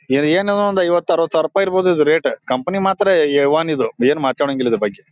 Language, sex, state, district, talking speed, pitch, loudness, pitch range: Kannada, male, Karnataka, Bijapur, 210 wpm, 165 Hz, -16 LUFS, 145-195 Hz